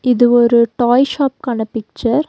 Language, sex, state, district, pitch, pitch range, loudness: Tamil, female, Tamil Nadu, Nilgiris, 240 Hz, 235-260 Hz, -14 LUFS